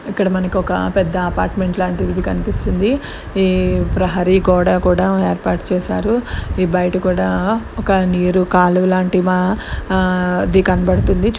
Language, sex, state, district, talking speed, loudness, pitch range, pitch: Telugu, female, Andhra Pradesh, Guntur, 115 wpm, -16 LUFS, 180-190 Hz, 185 Hz